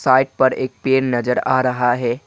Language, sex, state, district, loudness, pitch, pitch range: Hindi, male, Assam, Kamrup Metropolitan, -18 LUFS, 130 Hz, 125-130 Hz